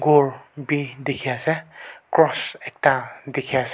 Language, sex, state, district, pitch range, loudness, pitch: Nagamese, male, Nagaland, Kohima, 135-150 Hz, -22 LUFS, 145 Hz